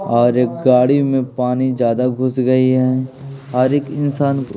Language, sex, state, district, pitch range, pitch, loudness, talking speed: Hindi, male, Bihar, Patna, 125-135 Hz, 130 Hz, -16 LUFS, 170 wpm